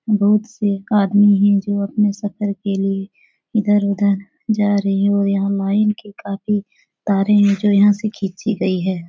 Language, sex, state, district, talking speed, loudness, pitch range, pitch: Hindi, female, Bihar, Supaul, 180 wpm, -17 LUFS, 200-210 Hz, 205 Hz